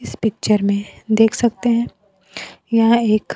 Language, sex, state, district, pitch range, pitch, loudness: Hindi, female, Bihar, Kaimur, 215-235 Hz, 225 Hz, -17 LUFS